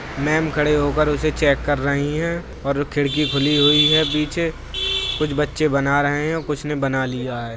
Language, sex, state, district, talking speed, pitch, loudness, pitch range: Hindi, male, Uttar Pradesh, Budaun, 205 wpm, 145 Hz, -19 LUFS, 140-150 Hz